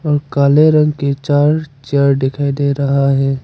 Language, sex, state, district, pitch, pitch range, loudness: Hindi, female, Arunachal Pradesh, Papum Pare, 140 Hz, 140-145 Hz, -14 LUFS